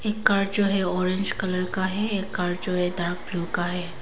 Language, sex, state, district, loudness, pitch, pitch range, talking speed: Hindi, female, Arunachal Pradesh, Papum Pare, -25 LUFS, 185 Hz, 180-195 Hz, 240 wpm